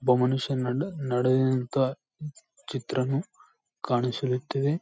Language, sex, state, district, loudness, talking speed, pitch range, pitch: Kannada, male, Karnataka, Bijapur, -27 LUFS, 60 wpm, 125-140 Hz, 130 Hz